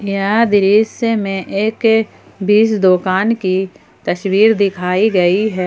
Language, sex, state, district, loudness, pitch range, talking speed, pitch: Hindi, female, Jharkhand, Palamu, -14 LUFS, 190-220 Hz, 115 wpm, 200 Hz